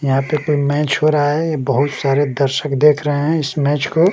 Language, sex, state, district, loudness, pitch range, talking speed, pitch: Hindi, male, Bihar, Kaimur, -16 LUFS, 140-150 Hz, 245 wpm, 145 Hz